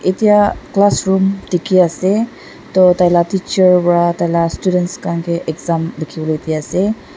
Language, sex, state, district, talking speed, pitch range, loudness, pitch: Nagamese, female, Nagaland, Dimapur, 135 wpm, 170-190 Hz, -15 LUFS, 180 Hz